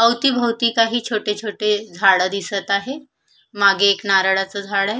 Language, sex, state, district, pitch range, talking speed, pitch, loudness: Marathi, female, Maharashtra, Solapur, 200-230 Hz, 145 wpm, 210 Hz, -18 LUFS